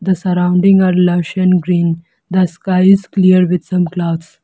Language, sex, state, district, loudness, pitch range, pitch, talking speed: English, female, Arunachal Pradesh, Lower Dibang Valley, -13 LUFS, 175-185 Hz, 180 Hz, 175 wpm